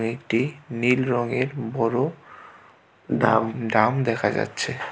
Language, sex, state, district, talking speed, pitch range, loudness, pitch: Bengali, male, Tripura, West Tripura, 95 wpm, 115-130 Hz, -23 LUFS, 120 Hz